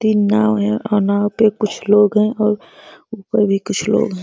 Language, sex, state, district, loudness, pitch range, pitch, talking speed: Hindi, female, Uttar Pradesh, Ghazipur, -16 LUFS, 200-215 Hz, 210 Hz, 210 wpm